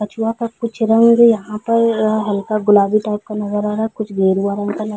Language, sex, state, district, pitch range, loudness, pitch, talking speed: Hindi, female, Chhattisgarh, Balrampur, 205-225 Hz, -16 LUFS, 215 Hz, 215 wpm